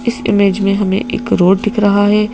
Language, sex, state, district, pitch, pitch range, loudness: Hindi, female, Madhya Pradesh, Bhopal, 205 Hz, 200-210 Hz, -13 LUFS